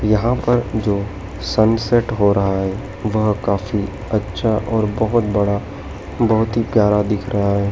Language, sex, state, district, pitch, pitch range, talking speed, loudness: Hindi, male, Madhya Pradesh, Dhar, 105 Hz, 100-110 Hz, 140 wpm, -18 LUFS